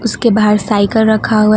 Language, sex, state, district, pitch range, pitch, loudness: Hindi, female, West Bengal, Alipurduar, 210-220 Hz, 215 Hz, -12 LUFS